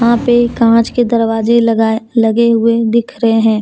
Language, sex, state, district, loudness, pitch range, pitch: Hindi, female, Jharkhand, Deoghar, -12 LUFS, 225-235 Hz, 230 Hz